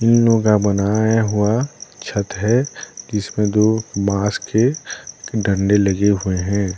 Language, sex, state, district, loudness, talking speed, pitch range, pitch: Hindi, male, Bihar, Patna, -18 LUFS, 135 wpm, 100-115 Hz, 105 Hz